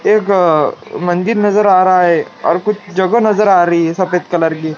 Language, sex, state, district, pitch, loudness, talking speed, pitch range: Hindi, male, Maharashtra, Washim, 185 Hz, -13 LUFS, 200 wpm, 170-205 Hz